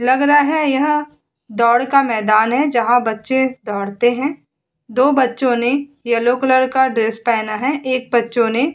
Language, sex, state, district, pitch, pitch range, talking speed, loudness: Hindi, female, Uttar Pradesh, Muzaffarnagar, 255 Hz, 235-275 Hz, 170 wpm, -16 LUFS